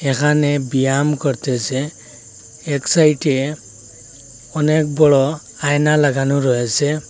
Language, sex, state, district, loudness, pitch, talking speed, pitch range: Bengali, male, Assam, Hailakandi, -17 LUFS, 140 Hz, 95 wpm, 125-150 Hz